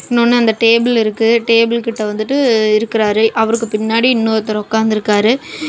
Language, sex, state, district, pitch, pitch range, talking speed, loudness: Tamil, female, Tamil Nadu, Namakkal, 225 Hz, 215-235 Hz, 125 wpm, -13 LUFS